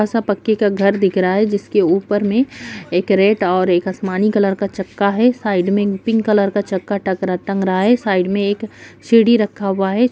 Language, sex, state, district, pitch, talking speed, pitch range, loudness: Hindi, female, Bihar, Jahanabad, 200 Hz, 205 wpm, 190-215 Hz, -16 LUFS